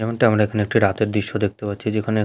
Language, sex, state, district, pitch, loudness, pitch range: Bengali, male, West Bengal, Jhargram, 110 Hz, -20 LUFS, 105-110 Hz